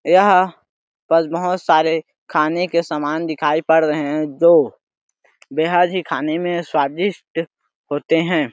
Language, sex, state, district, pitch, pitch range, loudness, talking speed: Hindi, male, Chhattisgarh, Sarguja, 165 Hz, 155-175 Hz, -18 LUFS, 125 wpm